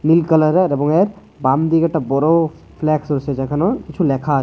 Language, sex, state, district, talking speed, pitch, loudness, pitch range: Bengali, male, Tripura, West Tripura, 175 wpm, 155 Hz, -17 LUFS, 145-165 Hz